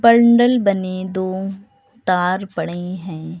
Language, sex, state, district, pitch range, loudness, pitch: Hindi, female, Uttar Pradesh, Lucknow, 180-230 Hz, -18 LUFS, 190 Hz